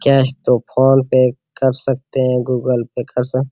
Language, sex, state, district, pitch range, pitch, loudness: Hindi, male, Bihar, Araria, 125-135 Hz, 130 Hz, -16 LUFS